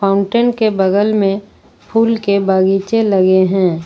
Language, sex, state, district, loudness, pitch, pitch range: Hindi, female, Jharkhand, Ranchi, -14 LUFS, 200 Hz, 190-220 Hz